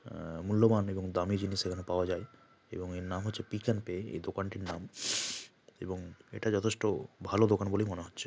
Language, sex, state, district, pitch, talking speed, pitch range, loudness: Bengali, male, West Bengal, Paschim Medinipur, 100 Hz, 180 wpm, 90-110 Hz, -34 LUFS